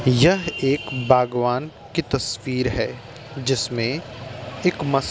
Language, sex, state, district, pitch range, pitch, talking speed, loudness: Hindi, male, Uttar Pradesh, Varanasi, 125-140 Hz, 130 Hz, 115 wpm, -22 LUFS